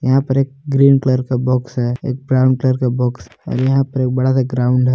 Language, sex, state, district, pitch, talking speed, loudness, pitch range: Hindi, male, Jharkhand, Palamu, 130 Hz, 255 wpm, -16 LUFS, 125-135 Hz